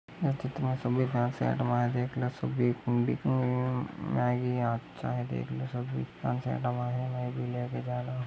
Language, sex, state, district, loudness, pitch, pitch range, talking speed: Hindi, male, Maharashtra, Dhule, -31 LUFS, 125 Hz, 120-125 Hz, 50 wpm